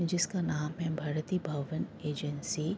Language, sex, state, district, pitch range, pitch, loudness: Hindi, female, Bihar, Begusarai, 150-170 Hz, 155 Hz, -34 LUFS